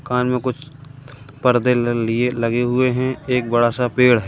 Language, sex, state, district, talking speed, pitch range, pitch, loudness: Hindi, male, Madhya Pradesh, Katni, 195 wpm, 120-130 Hz, 125 Hz, -19 LUFS